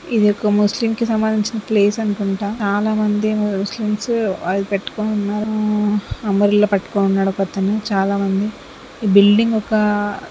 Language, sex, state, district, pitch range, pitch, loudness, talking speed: Telugu, female, Andhra Pradesh, Srikakulam, 200-215 Hz, 210 Hz, -18 LUFS, 115 wpm